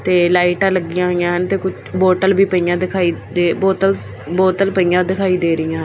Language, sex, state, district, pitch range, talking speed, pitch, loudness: Punjabi, female, Punjab, Fazilka, 175-190 Hz, 175 wpm, 185 Hz, -16 LUFS